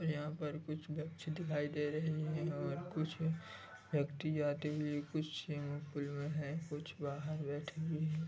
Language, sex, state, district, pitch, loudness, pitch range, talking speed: Hindi, male, Chhattisgarh, Bilaspur, 150 Hz, -41 LUFS, 145-155 Hz, 150 wpm